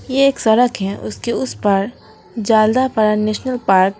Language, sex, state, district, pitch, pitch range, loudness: Hindi, female, West Bengal, Alipurduar, 215 Hz, 195-245 Hz, -16 LUFS